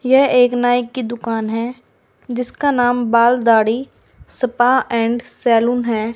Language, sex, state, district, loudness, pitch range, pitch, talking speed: Hindi, female, Haryana, Rohtak, -16 LUFS, 230-250 Hz, 240 Hz, 135 wpm